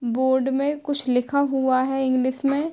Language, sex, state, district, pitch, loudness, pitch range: Hindi, female, Bihar, Darbhanga, 265 Hz, -22 LUFS, 255-280 Hz